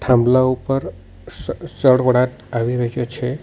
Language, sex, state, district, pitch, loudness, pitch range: Gujarati, male, Gujarat, Navsari, 125 Hz, -18 LUFS, 120-130 Hz